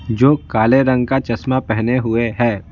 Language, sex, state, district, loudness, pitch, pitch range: Hindi, male, Bihar, Patna, -16 LUFS, 120 Hz, 115-130 Hz